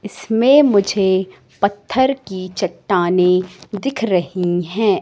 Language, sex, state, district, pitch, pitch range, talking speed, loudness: Hindi, female, Madhya Pradesh, Katni, 195 Hz, 185-225 Hz, 95 wpm, -17 LUFS